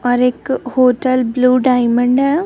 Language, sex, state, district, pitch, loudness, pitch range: Hindi, female, Bihar, Kaimur, 250 Hz, -14 LUFS, 245-255 Hz